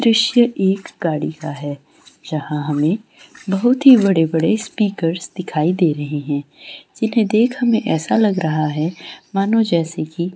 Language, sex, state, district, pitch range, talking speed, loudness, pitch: Hindi, female, West Bengal, Dakshin Dinajpur, 155-220 Hz, 145 wpm, -18 LUFS, 175 Hz